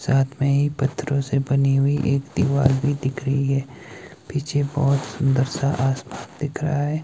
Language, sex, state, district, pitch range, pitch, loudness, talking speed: Hindi, male, Himachal Pradesh, Shimla, 135-145 Hz, 140 Hz, -22 LUFS, 180 wpm